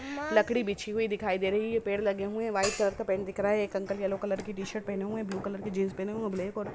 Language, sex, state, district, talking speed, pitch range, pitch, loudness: Hindi, female, Bihar, Sitamarhi, 310 wpm, 195-215 Hz, 200 Hz, -31 LUFS